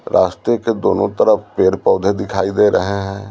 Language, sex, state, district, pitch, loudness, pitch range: Hindi, male, Bihar, Patna, 100 Hz, -16 LUFS, 100-105 Hz